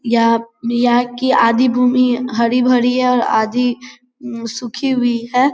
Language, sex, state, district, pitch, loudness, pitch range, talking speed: Hindi, female, Bihar, Vaishali, 245 Hz, -15 LUFS, 235-250 Hz, 140 wpm